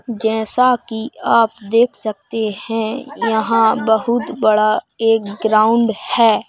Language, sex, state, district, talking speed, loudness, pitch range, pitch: Hindi, male, Madhya Pradesh, Bhopal, 110 wpm, -16 LUFS, 220-230 Hz, 225 Hz